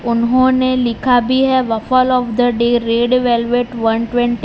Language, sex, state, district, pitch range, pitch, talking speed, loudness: Hindi, male, Gujarat, Valsad, 235-255 Hz, 245 Hz, 175 wpm, -14 LUFS